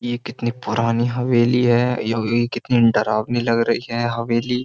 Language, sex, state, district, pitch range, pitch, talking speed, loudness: Hindi, male, Uttar Pradesh, Jyotiba Phule Nagar, 115-120 Hz, 120 Hz, 155 wpm, -19 LUFS